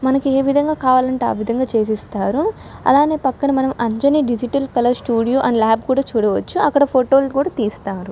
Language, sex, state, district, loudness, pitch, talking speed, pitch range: Telugu, female, Telangana, Karimnagar, -17 LUFS, 260 Hz, 155 wpm, 235-275 Hz